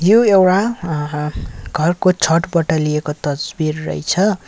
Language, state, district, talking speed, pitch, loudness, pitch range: Nepali, West Bengal, Darjeeling, 120 wpm, 165 Hz, -17 LUFS, 150-185 Hz